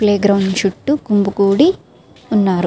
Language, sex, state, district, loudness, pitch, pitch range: Telugu, female, Andhra Pradesh, Srikakulam, -15 LUFS, 200 Hz, 195-210 Hz